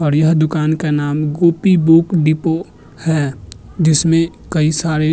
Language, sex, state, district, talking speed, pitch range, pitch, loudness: Hindi, male, Maharashtra, Chandrapur, 140 wpm, 150-165 Hz, 155 Hz, -15 LUFS